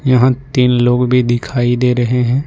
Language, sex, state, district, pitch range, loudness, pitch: Hindi, male, Jharkhand, Ranchi, 120-125 Hz, -13 LUFS, 125 Hz